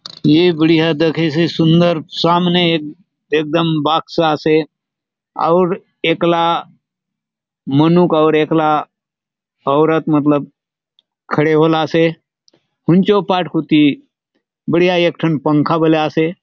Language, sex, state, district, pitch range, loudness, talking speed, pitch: Halbi, male, Chhattisgarh, Bastar, 155-170 Hz, -14 LUFS, 100 wpm, 160 Hz